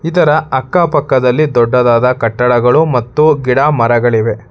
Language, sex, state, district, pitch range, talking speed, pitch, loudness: Kannada, male, Karnataka, Bangalore, 120-150 Hz, 80 wpm, 125 Hz, -11 LUFS